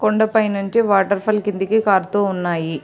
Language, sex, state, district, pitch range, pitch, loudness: Telugu, female, Andhra Pradesh, Srikakulam, 190-215 Hz, 200 Hz, -18 LUFS